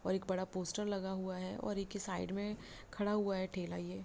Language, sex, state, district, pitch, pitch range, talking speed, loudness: Hindi, female, Bihar, Jahanabad, 190 Hz, 185-205 Hz, 235 wpm, -40 LUFS